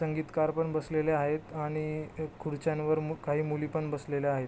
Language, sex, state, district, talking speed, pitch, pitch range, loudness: Marathi, male, Maharashtra, Pune, 145 wpm, 155 Hz, 150-155 Hz, -32 LUFS